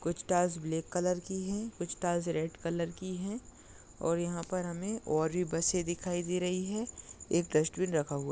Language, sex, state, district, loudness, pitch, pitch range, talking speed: Hindi, male, Maharashtra, Dhule, -34 LUFS, 175 Hz, 165-185 Hz, 195 wpm